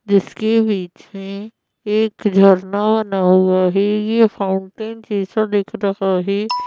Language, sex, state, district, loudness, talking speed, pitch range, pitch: Hindi, female, Madhya Pradesh, Bhopal, -17 LUFS, 115 wpm, 195-220 Hz, 205 Hz